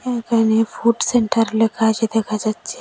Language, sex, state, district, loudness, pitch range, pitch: Bengali, female, Assam, Hailakandi, -18 LUFS, 220-230 Hz, 225 Hz